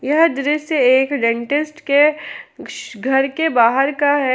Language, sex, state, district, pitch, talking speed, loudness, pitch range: Hindi, female, Jharkhand, Palamu, 280 Hz, 140 wpm, -16 LUFS, 260-295 Hz